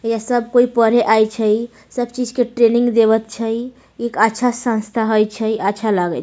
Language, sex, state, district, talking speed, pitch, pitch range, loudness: Maithili, female, Bihar, Samastipur, 195 wpm, 230 Hz, 220-240 Hz, -17 LUFS